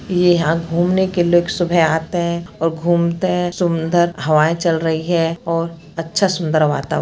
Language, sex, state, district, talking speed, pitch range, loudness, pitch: Hindi, female, Chhattisgarh, Bastar, 170 wpm, 165-175 Hz, -17 LUFS, 170 Hz